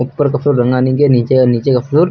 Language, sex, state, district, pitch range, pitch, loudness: Hindi, male, Uttar Pradesh, Lucknow, 125-145 Hz, 130 Hz, -12 LUFS